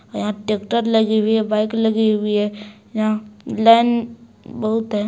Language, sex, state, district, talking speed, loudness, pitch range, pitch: Hindi, female, Bihar, Supaul, 155 wpm, -18 LUFS, 210-225 Hz, 215 Hz